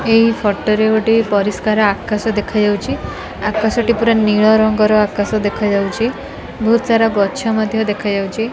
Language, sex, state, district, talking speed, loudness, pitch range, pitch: Odia, female, Odisha, Khordha, 125 wpm, -15 LUFS, 210-225 Hz, 215 Hz